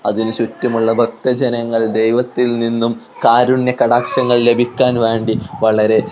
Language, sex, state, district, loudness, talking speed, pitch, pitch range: Malayalam, male, Kerala, Kozhikode, -15 LUFS, 110 wpm, 115 Hz, 115-120 Hz